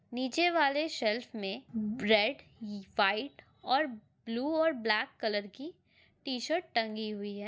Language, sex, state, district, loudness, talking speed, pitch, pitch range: Hindi, female, Andhra Pradesh, Anantapur, -32 LUFS, 135 wpm, 230 Hz, 215-290 Hz